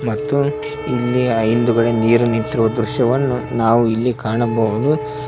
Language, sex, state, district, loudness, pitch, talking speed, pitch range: Kannada, male, Karnataka, Koppal, -17 LUFS, 120 Hz, 115 wpm, 115-140 Hz